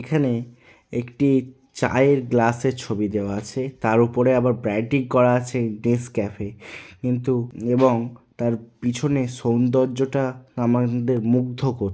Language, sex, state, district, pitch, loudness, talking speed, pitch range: Bengali, male, West Bengal, North 24 Parganas, 125 Hz, -22 LUFS, 115 wpm, 115-130 Hz